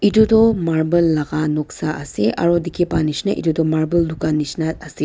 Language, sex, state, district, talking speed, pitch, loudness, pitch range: Nagamese, female, Nagaland, Dimapur, 165 wpm, 160 Hz, -18 LUFS, 155-170 Hz